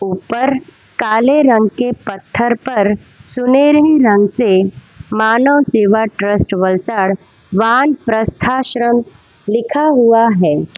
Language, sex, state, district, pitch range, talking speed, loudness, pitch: Hindi, female, Gujarat, Valsad, 200-255 Hz, 100 wpm, -13 LUFS, 225 Hz